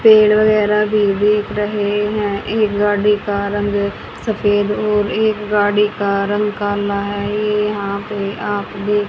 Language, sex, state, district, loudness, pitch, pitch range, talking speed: Hindi, female, Haryana, Charkhi Dadri, -17 LUFS, 205 Hz, 205-210 Hz, 160 wpm